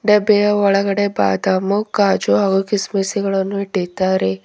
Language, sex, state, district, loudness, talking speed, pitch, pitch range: Kannada, female, Karnataka, Bidar, -17 LUFS, 95 wpm, 195 Hz, 185-205 Hz